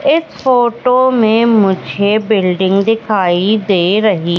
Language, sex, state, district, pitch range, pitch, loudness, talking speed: Hindi, female, Madhya Pradesh, Katni, 190-235 Hz, 215 Hz, -12 LUFS, 110 wpm